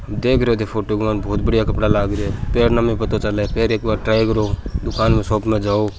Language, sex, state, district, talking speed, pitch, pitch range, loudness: Rajasthani, male, Rajasthan, Churu, 140 wpm, 110 Hz, 105-110 Hz, -19 LUFS